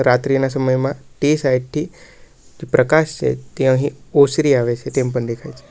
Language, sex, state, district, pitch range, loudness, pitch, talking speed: Gujarati, male, Gujarat, Valsad, 125-145 Hz, -18 LUFS, 135 Hz, 170 wpm